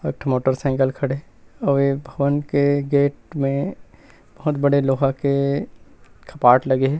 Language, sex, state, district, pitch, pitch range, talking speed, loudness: Chhattisgarhi, male, Chhattisgarh, Rajnandgaon, 140 Hz, 135-140 Hz, 155 wpm, -20 LUFS